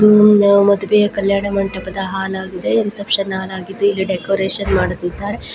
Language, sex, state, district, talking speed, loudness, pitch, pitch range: Kannada, female, Karnataka, Chamarajanagar, 85 wpm, -16 LUFS, 195 Hz, 190-205 Hz